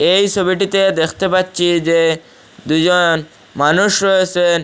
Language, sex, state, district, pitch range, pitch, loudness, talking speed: Bengali, male, Assam, Hailakandi, 165-190 Hz, 175 Hz, -14 LUFS, 105 wpm